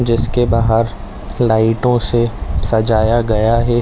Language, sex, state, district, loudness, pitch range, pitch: Hindi, male, Chhattisgarh, Korba, -15 LUFS, 110-120 Hz, 115 Hz